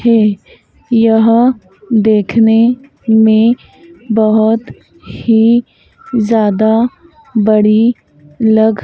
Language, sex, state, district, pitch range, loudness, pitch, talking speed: Hindi, female, Madhya Pradesh, Dhar, 215-235 Hz, -11 LUFS, 225 Hz, 70 wpm